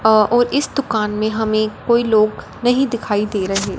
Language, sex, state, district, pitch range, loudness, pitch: Hindi, female, Punjab, Fazilka, 215-240 Hz, -17 LUFS, 220 Hz